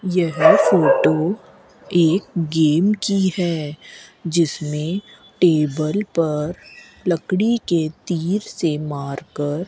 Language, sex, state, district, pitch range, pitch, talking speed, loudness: Hindi, female, Rajasthan, Bikaner, 155-185 Hz, 170 Hz, 95 wpm, -19 LUFS